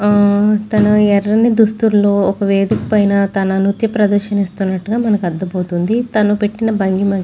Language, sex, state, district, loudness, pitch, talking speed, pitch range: Telugu, female, Andhra Pradesh, Chittoor, -14 LUFS, 205 Hz, 140 wpm, 195-215 Hz